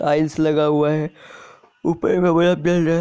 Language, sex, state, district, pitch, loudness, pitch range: Hindi, male, Bihar, Kishanganj, 155 Hz, -18 LUFS, 150-170 Hz